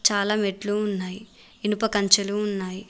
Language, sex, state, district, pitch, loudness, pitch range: Telugu, female, Telangana, Mahabubabad, 205 Hz, -24 LUFS, 200-210 Hz